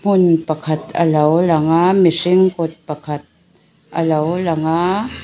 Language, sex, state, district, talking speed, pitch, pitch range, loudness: Mizo, female, Mizoram, Aizawl, 125 wpm, 165 Hz, 155-180 Hz, -16 LUFS